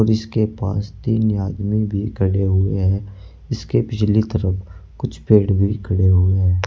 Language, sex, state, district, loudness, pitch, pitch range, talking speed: Hindi, male, Uttar Pradesh, Saharanpur, -19 LUFS, 100 Hz, 95-110 Hz, 155 wpm